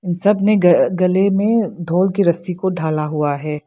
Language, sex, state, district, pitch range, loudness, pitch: Hindi, female, Arunachal Pradesh, Lower Dibang Valley, 160-195 Hz, -16 LUFS, 180 Hz